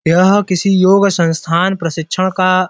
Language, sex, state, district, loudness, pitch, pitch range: Hindi, male, Uttar Pradesh, Varanasi, -13 LUFS, 185 Hz, 170-190 Hz